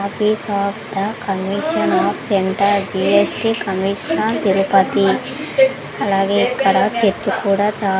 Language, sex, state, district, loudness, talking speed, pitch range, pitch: Telugu, female, Andhra Pradesh, Sri Satya Sai, -17 LUFS, 105 wpm, 195-215 Hz, 200 Hz